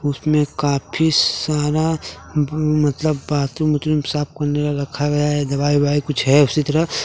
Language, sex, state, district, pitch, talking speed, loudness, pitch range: Hindi, male, Jharkhand, Deoghar, 150 Hz, 155 wpm, -19 LUFS, 145-155 Hz